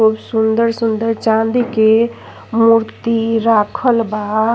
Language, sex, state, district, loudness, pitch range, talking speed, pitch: Bhojpuri, female, Uttar Pradesh, Ghazipur, -15 LUFS, 220-230 Hz, 105 wpm, 225 Hz